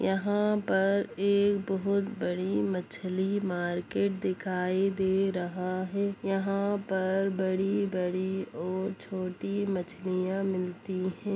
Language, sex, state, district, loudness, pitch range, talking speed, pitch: Hindi, female, Bihar, Jamui, -30 LUFS, 185-200 Hz, 100 wpm, 190 Hz